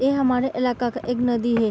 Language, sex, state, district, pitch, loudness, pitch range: Hindi, female, Bihar, East Champaran, 245 Hz, -22 LUFS, 240-255 Hz